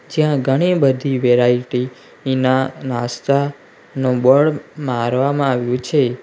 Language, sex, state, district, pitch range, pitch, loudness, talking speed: Gujarati, male, Gujarat, Valsad, 125-140 Hz, 130 Hz, -17 LUFS, 95 wpm